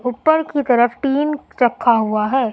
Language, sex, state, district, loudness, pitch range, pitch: Hindi, female, Uttar Pradesh, Lucknow, -17 LUFS, 240-285 Hz, 250 Hz